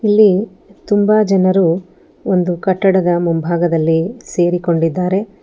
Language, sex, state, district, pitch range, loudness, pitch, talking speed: Kannada, female, Karnataka, Bangalore, 175-205 Hz, -15 LUFS, 185 Hz, 75 wpm